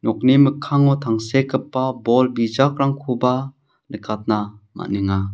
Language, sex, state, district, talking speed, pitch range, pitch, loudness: Garo, male, Meghalaya, South Garo Hills, 80 wpm, 110-135 Hz, 130 Hz, -19 LUFS